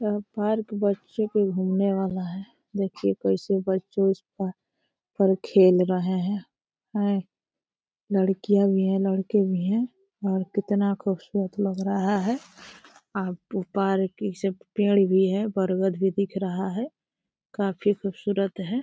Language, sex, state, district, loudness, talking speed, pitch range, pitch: Hindi, female, Uttar Pradesh, Deoria, -25 LUFS, 140 wpm, 190-205 Hz, 195 Hz